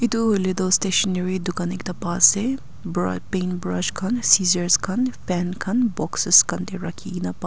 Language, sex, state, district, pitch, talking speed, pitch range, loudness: Nagamese, female, Nagaland, Kohima, 185 Hz, 175 wpm, 175-200 Hz, -21 LUFS